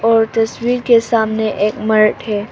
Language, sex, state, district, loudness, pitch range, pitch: Hindi, female, Arunachal Pradesh, Papum Pare, -15 LUFS, 215-230 Hz, 225 Hz